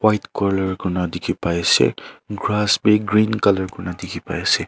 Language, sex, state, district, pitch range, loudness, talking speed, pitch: Nagamese, male, Nagaland, Kohima, 90-105 Hz, -19 LUFS, 180 wpm, 95 Hz